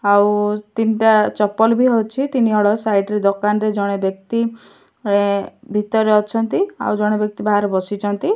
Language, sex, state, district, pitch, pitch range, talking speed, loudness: Odia, male, Odisha, Malkangiri, 210 Hz, 205-225 Hz, 135 wpm, -17 LUFS